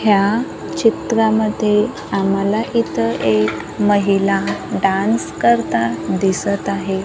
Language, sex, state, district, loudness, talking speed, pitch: Marathi, female, Maharashtra, Gondia, -17 LUFS, 85 wpm, 195 Hz